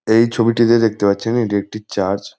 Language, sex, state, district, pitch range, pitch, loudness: Bengali, male, West Bengal, Jhargram, 100-115 Hz, 110 Hz, -16 LUFS